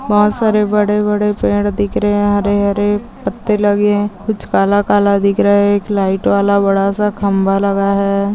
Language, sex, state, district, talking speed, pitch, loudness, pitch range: Hindi, female, Maharashtra, Solapur, 185 wpm, 205 Hz, -14 LUFS, 200-210 Hz